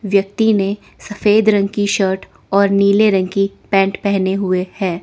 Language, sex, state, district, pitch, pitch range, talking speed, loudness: Hindi, female, Chandigarh, Chandigarh, 200 Hz, 195-205 Hz, 165 wpm, -16 LUFS